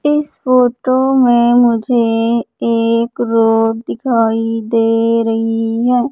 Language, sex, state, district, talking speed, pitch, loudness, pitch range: Hindi, female, Madhya Pradesh, Umaria, 100 wpm, 230 Hz, -14 LUFS, 225-245 Hz